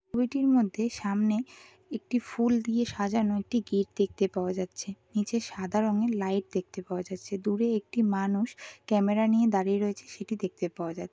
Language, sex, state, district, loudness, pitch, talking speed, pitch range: Bengali, female, West Bengal, Kolkata, -29 LUFS, 205 Hz, 155 wpm, 195-230 Hz